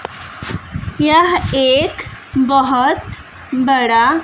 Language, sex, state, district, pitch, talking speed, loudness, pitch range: Hindi, female, Bihar, West Champaran, 270 Hz, 55 wpm, -14 LUFS, 260-310 Hz